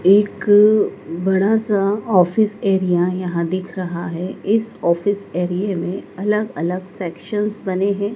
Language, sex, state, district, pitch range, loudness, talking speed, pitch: Hindi, female, Madhya Pradesh, Dhar, 180-210 Hz, -19 LUFS, 130 wpm, 190 Hz